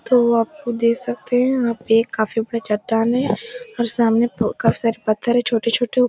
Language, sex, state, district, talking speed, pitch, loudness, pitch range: Hindi, female, Uttar Pradesh, Etah, 205 wpm, 235 Hz, -19 LUFS, 225-245 Hz